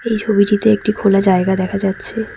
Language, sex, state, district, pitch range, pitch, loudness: Bengali, female, West Bengal, Cooch Behar, 195-215 Hz, 205 Hz, -14 LUFS